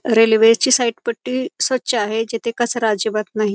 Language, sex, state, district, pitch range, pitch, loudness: Marathi, female, Maharashtra, Pune, 220-240 Hz, 230 Hz, -17 LUFS